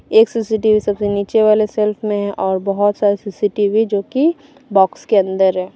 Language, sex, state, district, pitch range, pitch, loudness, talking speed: Hindi, female, Jharkhand, Deoghar, 200-220 Hz, 205 Hz, -16 LUFS, 185 wpm